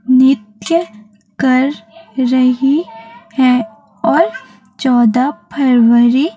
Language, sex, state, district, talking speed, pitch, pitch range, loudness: Hindi, female, Chhattisgarh, Raipur, 75 wpm, 250 Hz, 220-265 Hz, -13 LUFS